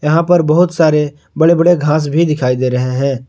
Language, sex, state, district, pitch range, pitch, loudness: Hindi, male, Jharkhand, Garhwa, 140-165 Hz, 155 Hz, -13 LUFS